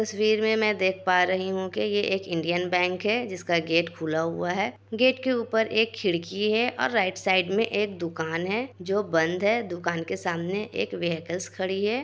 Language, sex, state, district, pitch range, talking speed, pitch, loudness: Hindi, female, Bihar, Kishanganj, 175-215 Hz, 205 wpm, 190 Hz, -26 LUFS